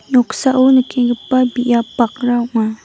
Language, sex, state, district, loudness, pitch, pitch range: Garo, female, Meghalaya, West Garo Hills, -15 LUFS, 245 Hz, 235-255 Hz